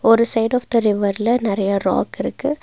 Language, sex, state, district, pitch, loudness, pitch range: Tamil, female, Tamil Nadu, Nilgiris, 225 Hz, -18 LUFS, 205-240 Hz